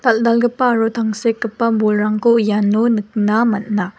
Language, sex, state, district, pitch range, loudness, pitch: Garo, female, Meghalaya, West Garo Hills, 210-235 Hz, -16 LUFS, 225 Hz